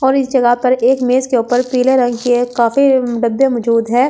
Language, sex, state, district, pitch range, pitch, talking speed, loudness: Hindi, female, Delhi, New Delhi, 240-260 Hz, 250 Hz, 280 wpm, -13 LUFS